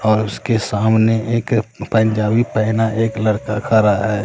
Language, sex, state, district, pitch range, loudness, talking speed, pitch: Hindi, male, Bihar, Katihar, 110-115 Hz, -17 LUFS, 140 wpm, 110 Hz